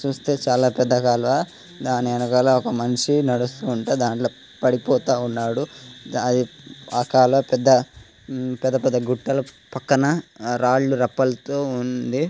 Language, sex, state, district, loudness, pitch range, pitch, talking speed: Telugu, male, Telangana, Nalgonda, -21 LUFS, 125-135 Hz, 125 Hz, 100 wpm